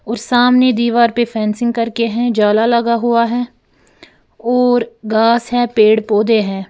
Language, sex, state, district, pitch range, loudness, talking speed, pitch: Hindi, female, Uttar Pradesh, Lalitpur, 220-240 Hz, -14 LUFS, 150 wpm, 235 Hz